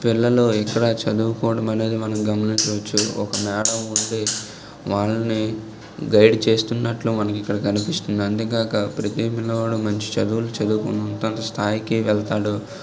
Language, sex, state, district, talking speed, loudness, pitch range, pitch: Telugu, male, Telangana, Nalgonda, 115 wpm, -21 LUFS, 105-115 Hz, 110 Hz